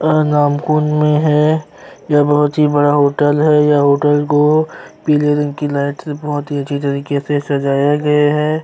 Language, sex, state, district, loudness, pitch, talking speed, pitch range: Hindi, male, Chhattisgarh, Kabirdham, -14 LUFS, 145 Hz, 175 wpm, 145-150 Hz